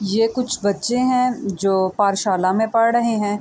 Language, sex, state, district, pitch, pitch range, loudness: Urdu, female, Andhra Pradesh, Anantapur, 215 Hz, 195-235 Hz, -19 LUFS